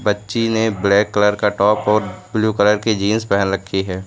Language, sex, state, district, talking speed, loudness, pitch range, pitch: Hindi, male, Uttar Pradesh, Lucknow, 205 wpm, -17 LUFS, 100-110 Hz, 105 Hz